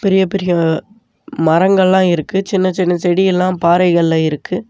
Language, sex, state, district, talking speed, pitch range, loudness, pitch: Tamil, male, Tamil Nadu, Namakkal, 130 wpm, 170-190 Hz, -14 LUFS, 180 Hz